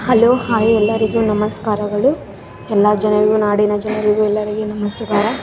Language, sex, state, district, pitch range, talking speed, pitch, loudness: Kannada, female, Karnataka, Raichur, 210-225 Hz, 120 wpm, 215 Hz, -16 LUFS